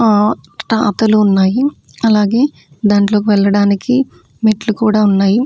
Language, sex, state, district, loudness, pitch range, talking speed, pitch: Telugu, female, Andhra Pradesh, Manyam, -13 LUFS, 205-225 Hz, 100 wpm, 215 Hz